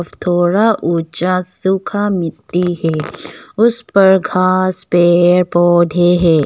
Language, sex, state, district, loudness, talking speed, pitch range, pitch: Hindi, female, Arunachal Pradesh, Longding, -14 LUFS, 100 wpm, 175-190 Hz, 180 Hz